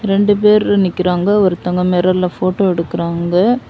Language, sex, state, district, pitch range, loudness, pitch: Tamil, female, Tamil Nadu, Kanyakumari, 180-205 Hz, -14 LUFS, 185 Hz